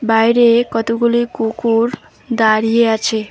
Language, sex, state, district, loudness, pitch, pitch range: Bengali, female, West Bengal, Alipurduar, -15 LUFS, 230 Hz, 225-235 Hz